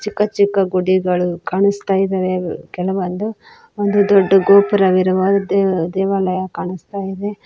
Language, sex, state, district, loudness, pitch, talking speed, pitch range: Kannada, female, Karnataka, Koppal, -16 LUFS, 195 Hz, 105 wpm, 185-200 Hz